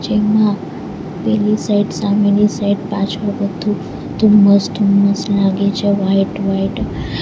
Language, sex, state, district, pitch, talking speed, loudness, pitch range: Gujarati, female, Gujarat, Valsad, 200 Hz, 115 wpm, -15 LUFS, 195-210 Hz